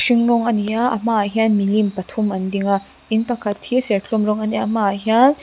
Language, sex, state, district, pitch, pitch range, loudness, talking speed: Mizo, female, Mizoram, Aizawl, 215 Hz, 205-235 Hz, -18 LUFS, 265 wpm